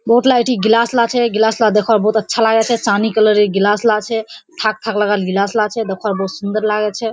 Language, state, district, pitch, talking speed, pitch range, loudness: Surjapuri, Bihar, Kishanganj, 220 Hz, 245 wpm, 210-230 Hz, -15 LUFS